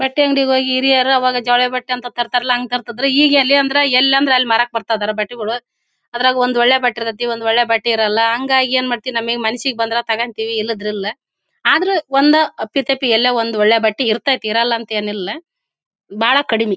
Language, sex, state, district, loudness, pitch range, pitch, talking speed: Kannada, female, Karnataka, Bellary, -15 LUFS, 225-265 Hz, 245 Hz, 160 wpm